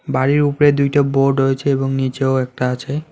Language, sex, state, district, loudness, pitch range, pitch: Bengali, male, West Bengal, Alipurduar, -17 LUFS, 130-145 Hz, 135 Hz